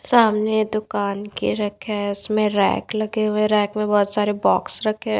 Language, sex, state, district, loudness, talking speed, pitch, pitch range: Hindi, female, Odisha, Nuapada, -21 LUFS, 175 wpm, 215 Hz, 205-215 Hz